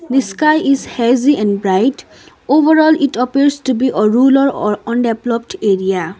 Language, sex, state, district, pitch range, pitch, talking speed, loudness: English, female, Sikkim, Gangtok, 215-280 Hz, 255 Hz, 155 wpm, -14 LUFS